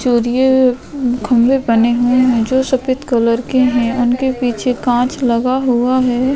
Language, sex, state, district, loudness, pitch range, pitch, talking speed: Hindi, female, Goa, North and South Goa, -14 LUFS, 240-260 Hz, 250 Hz, 150 wpm